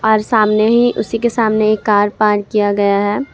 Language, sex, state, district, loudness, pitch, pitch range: Hindi, female, Jharkhand, Ranchi, -14 LUFS, 215 Hz, 205-225 Hz